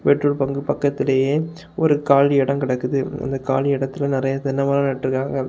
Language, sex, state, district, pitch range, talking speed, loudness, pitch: Tamil, male, Tamil Nadu, Kanyakumari, 135-140 Hz, 155 wpm, -20 LUFS, 140 Hz